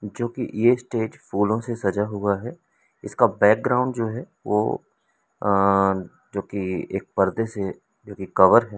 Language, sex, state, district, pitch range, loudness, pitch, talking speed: Hindi, male, Madhya Pradesh, Umaria, 100-120 Hz, -23 LUFS, 105 Hz, 165 wpm